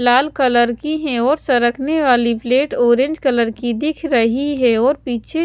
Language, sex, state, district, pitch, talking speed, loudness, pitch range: Hindi, female, Chandigarh, Chandigarh, 255 Hz, 175 wpm, -16 LUFS, 240-290 Hz